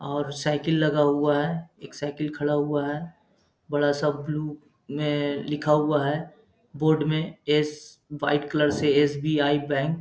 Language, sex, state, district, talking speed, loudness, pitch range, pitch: Hindi, male, Bihar, Darbhanga, 150 wpm, -25 LUFS, 145-150 Hz, 150 Hz